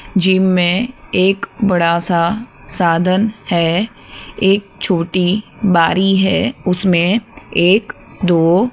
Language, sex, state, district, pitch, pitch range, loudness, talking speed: Hindi, female, Gujarat, Gandhinagar, 185 Hz, 175-200 Hz, -15 LUFS, 95 wpm